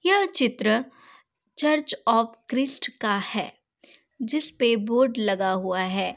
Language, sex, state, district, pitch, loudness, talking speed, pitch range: Hindi, female, Uttar Pradesh, Hamirpur, 240 Hz, -24 LUFS, 115 wpm, 215-285 Hz